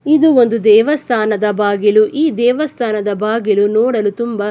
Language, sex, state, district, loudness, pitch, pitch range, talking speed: Kannada, female, Karnataka, Chamarajanagar, -13 LUFS, 220 Hz, 210-245 Hz, 120 wpm